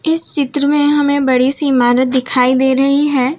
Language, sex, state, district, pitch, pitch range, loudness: Hindi, female, Gujarat, Valsad, 275 Hz, 255-290 Hz, -13 LUFS